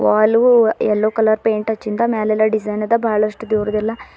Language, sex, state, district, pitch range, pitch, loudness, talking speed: Kannada, female, Karnataka, Bidar, 215-225 Hz, 215 Hz, -17 LUFS, 145 wpm